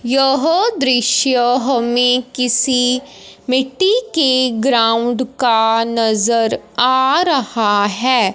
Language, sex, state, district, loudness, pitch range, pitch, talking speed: Hindi, female, Punjab, Fazilka, -15 LUFS, 235-265 Hz, 250 Hz, 85 wpm